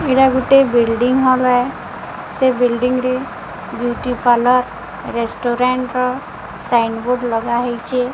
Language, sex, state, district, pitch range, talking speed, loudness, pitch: Odia, female, Odisha, Sambalpur, 240-255 Hz, 105 wpm, -16 LUFS, 250 Hz